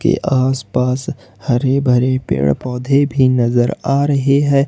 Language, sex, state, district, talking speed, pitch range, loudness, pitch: Hindi, male, Jharkhand, Ranchi, 140 wpm, 125-140 Hz, -15 LUFS, 130 Hz